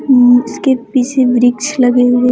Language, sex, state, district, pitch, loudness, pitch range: Hindi, male, Bihar, West Champaran, 250 Hz, -11 LUFS, 245-260 Hz